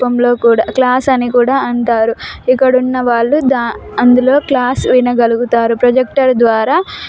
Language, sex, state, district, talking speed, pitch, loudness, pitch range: Telugu, female, Telangana, Nalgonda, 110 wpm, 250 Hz, -12 LUFS, 235-260 Hz